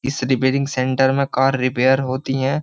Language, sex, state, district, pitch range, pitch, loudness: Hindi, male, Uttar Pradesh, Jyotiba Phule Nagar, 130-135 Hz, 130 Hz, -18 LUFS